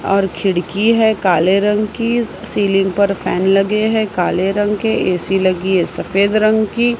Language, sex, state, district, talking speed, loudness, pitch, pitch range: Hindi, female, Maharashtra, Mumbai Suburban, 170 wpm, -15 LUFS, 200 Hz, 190-215 Hz